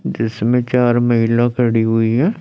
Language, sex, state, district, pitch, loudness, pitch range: Hindi, male, Chandigarh, Chandigarh, 120 Hz, -16 LUFS, 115-125 Hz